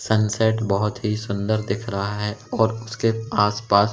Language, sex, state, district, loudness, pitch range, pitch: Hindi, male, Madhya Pradesh, Umaria, -22 LUFS, 105-110 Hz, 105 Hz